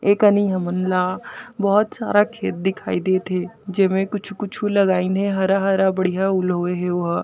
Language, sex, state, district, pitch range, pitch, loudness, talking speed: Chhattisgarhi, female, Chhattisgarh, Jashpur, 185-200 Hz, 190 Hz, -20 LUFS, 150 wpm